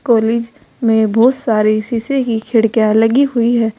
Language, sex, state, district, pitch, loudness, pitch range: Hindi, female, Uttar Pradesh, Saharanpur, 230 Hz, -14 LUFS, 220-240 Hz